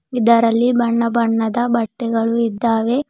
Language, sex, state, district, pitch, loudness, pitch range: Kannada, female, Karnataka, Bidar, 235 Hz, -17 LUFS, 225-240 Hz